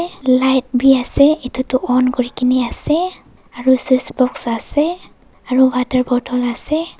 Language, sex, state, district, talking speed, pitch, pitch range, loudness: Nagamese, female, Nagaland, Dimapur, 135 wpm, 255 Hz, 250-270 Hz, -16 LUFS